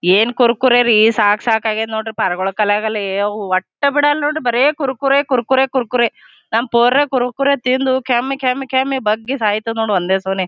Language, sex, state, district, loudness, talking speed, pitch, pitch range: Kannada, female, Karnataka, Gulbarga, -16 LUFS, 160 wpm, 240 Hz, 210-265 Hz